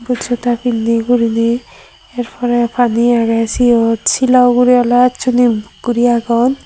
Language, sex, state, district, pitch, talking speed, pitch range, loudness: Chakma, female, Tripura, Dhalai, 240 Hz, 135 wpm, 230-245 Hz, -13 LUFS